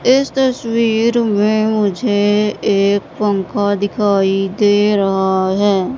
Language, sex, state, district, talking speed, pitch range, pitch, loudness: Hindi, female, Madhya Pradesh, Katni, 100 wpm, 200-225 Hz, 205 Hz, -15 LUFS